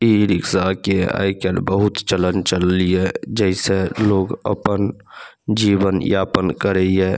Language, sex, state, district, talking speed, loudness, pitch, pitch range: Maithili, male, Bihar, Saharsa, 100 wpm, -18 LUFS, 95 Hz, 95-100 Hz